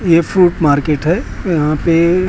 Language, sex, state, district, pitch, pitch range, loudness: Hindi, male, Maharashtra, Mumbai Suburban, 165 Hz, 150-180 Hz, -14 LUFS